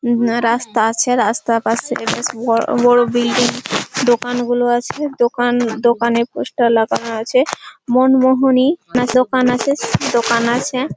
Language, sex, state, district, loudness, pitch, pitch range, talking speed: Bengali, female, West Bengal, Malda, -16 LUFS, 245 Hz, 235-255 Hz, 120 wpm